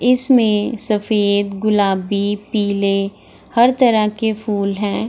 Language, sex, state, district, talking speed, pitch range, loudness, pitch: Hindi, female, Bihar, Gaya, 105 wpm, 200-225 Hz, -17 LUFS, 210 Hz